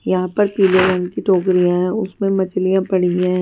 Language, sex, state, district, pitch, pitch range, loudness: Hindi, female, Bihar, West Champaran, 185 Hz, 180-190 Hz, -17 LUFS